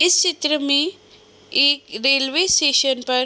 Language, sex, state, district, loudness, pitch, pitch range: Hindi, female, Uttar Pradesh, Budaun, -17 LUFS, 285 Hz, 270-345 Hz